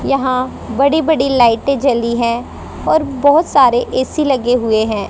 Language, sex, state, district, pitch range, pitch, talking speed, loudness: Hindi, female, Haryana, Jhajjar, 235-280 Hz, 260 Hz, 155 wpm, -14 LUFS